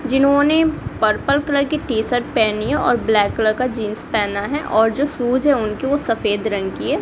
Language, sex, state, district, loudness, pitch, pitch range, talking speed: Hindi, female, Bihar, Kaimur, -18 LUFS, 245 Hz, 215-280 Hz, 205 wpm